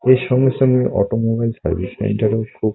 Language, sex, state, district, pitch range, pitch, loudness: Bengali, male, West Bengal, Kolkata, 110-125 Hz, 115 Hz, -18 LUFS